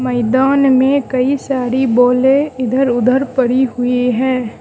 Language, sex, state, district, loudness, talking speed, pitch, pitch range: Hindi, female, Mizoram, Aizawl, -14 LUFS, 130 wpm, 255 Hz, 250-265 Hz